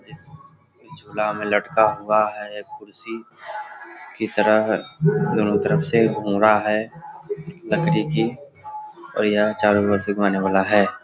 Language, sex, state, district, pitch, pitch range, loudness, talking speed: Hindi, male, Bihar, Sitamarhi, 110 Hz, 105-155 Hz, -20 LUFS, 140 wpm